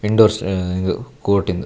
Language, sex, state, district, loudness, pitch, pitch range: Tulu, male, Karnataka, Dakshina Kannada, -19 LUFS, 95 Hz, 90-105 Hz